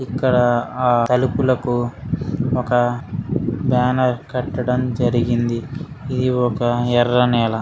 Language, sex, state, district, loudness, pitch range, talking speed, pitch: Telugu, male, Andhra Pradesh, Srikakulam, -19 LUFS, 120-130 Hz, 85 wpm, 125 Hz